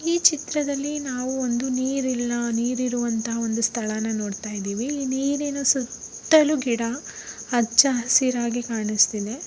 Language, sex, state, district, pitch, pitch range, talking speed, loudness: Kannada, female, Karnataka, Bellary, 245 Hz, 230-275 Hz, 115 wpm, -23 LUFS